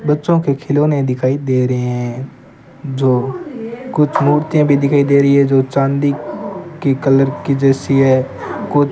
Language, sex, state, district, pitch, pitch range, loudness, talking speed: Hindi, male, Rajasthan, Bikaner, 140 Hz, 135-150 Hz, -15 LUFS, 150 wpm